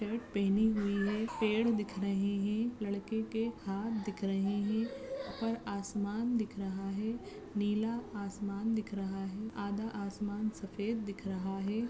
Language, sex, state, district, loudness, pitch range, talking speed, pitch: Hindi, female, Maharashtra, Sindhudurg, -36 LUFS, 200-225 Hz, 150 wpm, 205 Hz